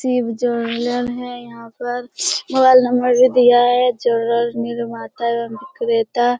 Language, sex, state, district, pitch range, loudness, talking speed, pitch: Hindi, female, Bihar, Begusarai, 235-250 Hz, -17 LUFS, 140 wpm, 245 Hz